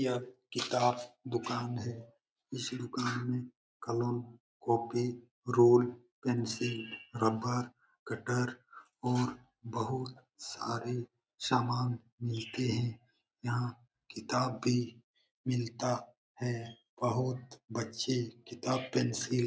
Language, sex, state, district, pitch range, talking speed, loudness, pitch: Hindi, male, Bihar, Jamui, 120-125 Hz, 90 wpm, -35 LUFS, 120 Hz